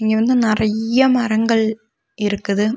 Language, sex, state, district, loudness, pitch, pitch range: Tamil, female, Tamil Nadu, Nilgiris, -17 LUFS, 220 Hz, 215-235 Hz